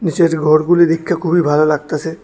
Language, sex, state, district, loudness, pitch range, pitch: Bengali, male, Tripura, West Tripura, -14 LUFS, 155-170 Hz, 165 Hz